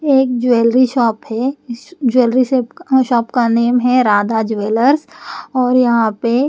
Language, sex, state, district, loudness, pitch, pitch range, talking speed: Hindi, female, Bihar, West Champaran, -14 LUFS, 245 Hz, 235-260 Hz, 155 wpm